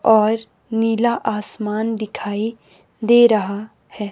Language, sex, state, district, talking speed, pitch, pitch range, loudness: Hindi, female, Himachal Pradesh, Shimla, 100 wpm, 220 Hz, 210-225 Hz, -19 LUFS